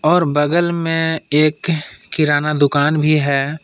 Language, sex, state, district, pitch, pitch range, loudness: Hindi, male, Jharkhand, Palamu, 150 Hz, 145-160 Hz, -16 LUFS